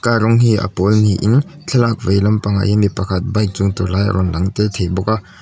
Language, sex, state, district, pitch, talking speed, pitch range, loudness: Mizo, male, Mizoram, Aizawl, 105 Hz, 255 wpm, 95-110 Hz, -16 LUFS